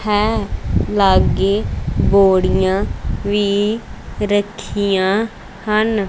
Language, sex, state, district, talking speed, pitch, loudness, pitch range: Punjabi, female, Punjab, Kapurthala, 60 wpm, 205 Hz, -17 LUFS, 195-210 Hz